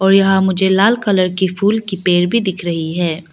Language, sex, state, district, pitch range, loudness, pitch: Hindi, female, Arunachal Pradesh, Lower Dibang Valley, 175-195 Hz, -15 LUFS, 190 Hz